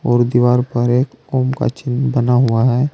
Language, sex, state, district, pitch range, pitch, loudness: Hindi, male, Uttar Pradesh, Saharanpur, 120-130 Hz, 125 Hz, -16 LUFS